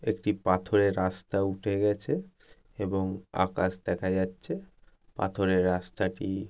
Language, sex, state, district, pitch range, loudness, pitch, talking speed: Bengali, male, West Bengal, Jalpaiguri, 95-100 Hz, -29 LUFS, 95 Hz, 100 wpm